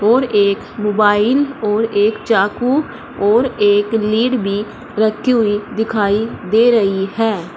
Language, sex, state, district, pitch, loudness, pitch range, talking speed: Hindi, female, Uttar Pradesh, Shamli, 215 Hz, -15 LUFS, 205-230 Hz, 125 wpm